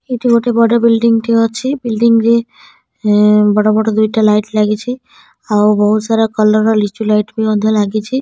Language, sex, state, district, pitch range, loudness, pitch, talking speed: Odia, female, Odisha, Nuapada, 210-230 Hz, -12 LUFS, 220 Hz, 170 wpm